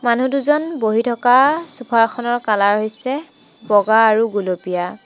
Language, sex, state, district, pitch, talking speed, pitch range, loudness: Assamese, female, Assam, Sonitpur, 230 Hz, 130 wpm, 210-260 Hz, -17 LUFS